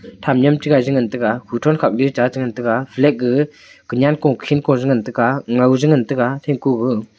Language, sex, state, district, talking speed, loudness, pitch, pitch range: Wancho, male, Arunachal Pradesh, Longding, 210 wpm, -17 LUFS, 130 Hz, 125-145 Hz